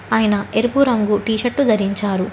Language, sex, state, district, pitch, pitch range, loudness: Telugu, female, Telangana, Hyderabad, 215 Hz, 205-245 Hz, -17 LUFS